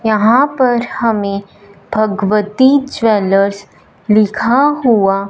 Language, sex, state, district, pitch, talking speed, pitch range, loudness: Hindi, female, Punjab, Fazilka, 215 Hz, 80 wpm, 200-250 Hz, -13 LUFS